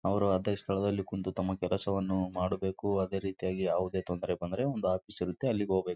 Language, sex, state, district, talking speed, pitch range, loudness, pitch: Kannada, male, Karnataka, Raichur, 80 wpm, 95-100 Hz, -33 LUFS, 95 Hz